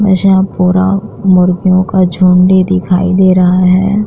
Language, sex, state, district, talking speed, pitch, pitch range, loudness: Hindi, female, Bihar, Vaishali, 160 wpm, 185 Hz, 185-190 Hz, -9 LUFS